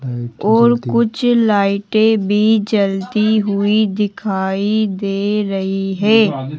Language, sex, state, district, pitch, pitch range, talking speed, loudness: Hindi, male, Rajasthan, Jaipur, 205 Hz, 195-220 Hz, 90 wpm, -15 LUFS